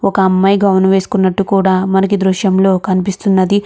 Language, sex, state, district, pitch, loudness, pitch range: Telugu, female, Andhra Pradesh, Krishna, 195 Hz, -12 LUFS, 190-195 Hz